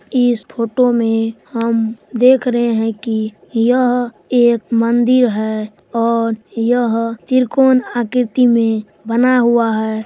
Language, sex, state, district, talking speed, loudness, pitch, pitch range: Hindi, female, Bihar, Supaul, 120 wpm, -15 LUFS, 230 Hz, 225-245 Hz